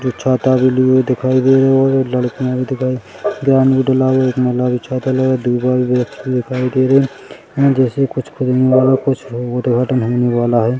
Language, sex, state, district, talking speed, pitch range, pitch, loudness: Hindi, male, Chhattisgarh, Rajnandgaon, 190 wpm, 125-130 Hz, 130 Hz, -15 LUFS